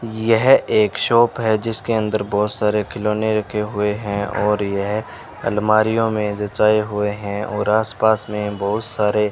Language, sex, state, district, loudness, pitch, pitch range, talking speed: Hindi, male, Rajasthan, Bikaner, -19 LUFS, 105 Hz, 105-110 Hz, 160 wpm